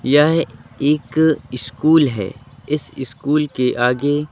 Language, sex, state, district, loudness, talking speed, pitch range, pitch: Hindi, male, Madhya Pradesh, Katni, -18 LUFS, 110 wpm, 125-150 Hz, 140 Hz